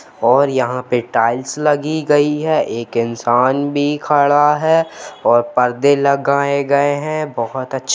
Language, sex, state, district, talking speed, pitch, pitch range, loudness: Hindi, male, Jharkhand, Jamtara, 145 wpm, 140 Hz, 125-150 Hz, -16 LUFS